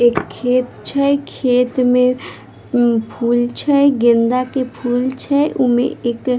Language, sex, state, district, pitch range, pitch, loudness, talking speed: Maithili, female, Bihar, Vaishali, 240-265 Hz, 250 Hz, -16 LUFS, 130 wpm